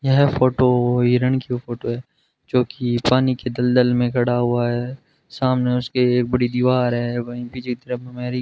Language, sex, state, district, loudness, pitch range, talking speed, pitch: Hindi, male, Rajasthan, Bikaner, -20 LUFS, 120-125 Hz, 190 wpm, 125 Hz